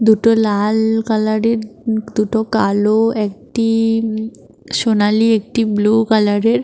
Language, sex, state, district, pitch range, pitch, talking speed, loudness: Bengali, female, Jharkhand, Jamtara, 215-225 Hz, 220 Hz, 125 wpm, -16 LUFS